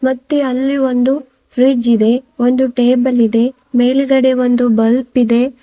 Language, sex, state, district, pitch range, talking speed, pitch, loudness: Kannada, female, Karnataka, Bidar, 245-260 Hz, 130 wpm, 255 Hz, -13 LUFS